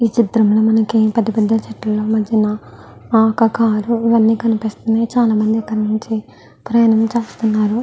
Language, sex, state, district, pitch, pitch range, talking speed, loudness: Telugu, female, Andhra Pradesh, Guntur, 220 Hz, 220-230 Hz, 140 wpm, -16 LUFS